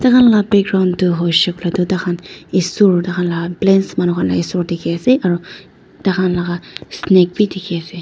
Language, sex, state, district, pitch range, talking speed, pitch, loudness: Nagamese, female, Nagaland, Dimapur, 175-195 Hz, 170 wpm, 180 Hz, -15 LUFS